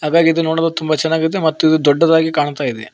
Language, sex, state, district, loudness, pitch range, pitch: Kannada, male, Karnataka, Koppal, -15 LUFS, 150-160 Hz, 160 Hz